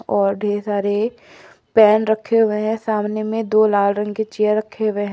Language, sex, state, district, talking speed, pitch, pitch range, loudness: Hindi, female, Jharkhand, Palamu, 200 wpm, 215 Hz, 205-220 Hz, -18 LUFS